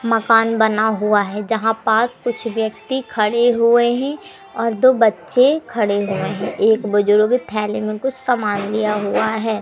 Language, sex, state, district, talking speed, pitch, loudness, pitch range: Hindi, female, Madhya Pradesh, Umaria, 160 wpm, 220 Hz, -17 LUFS, 210-240 Hz